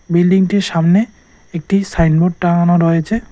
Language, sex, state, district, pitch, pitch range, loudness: Bengali, male, West Bengal, Cooch Behar, 175 Hz, 170-195 Hz, -14 LUFS